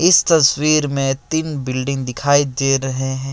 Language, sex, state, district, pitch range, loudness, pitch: Hindi, male, Assam, Kamrup Metropolitan, 135-155 Hz, -17 LUFS, 140 Hz